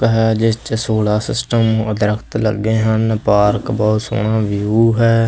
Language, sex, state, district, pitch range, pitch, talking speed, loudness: Punjabi, male, Punjab, Kapurthala, 105-115 Hz, 110 Hz, 150 wpm, -16 LUFS